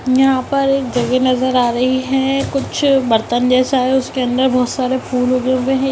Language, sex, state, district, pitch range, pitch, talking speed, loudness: Hindi, female, Bihar, Muzaffarpur, 250-265 Hz, 255 Hz, 200 wpm, -15 LUFS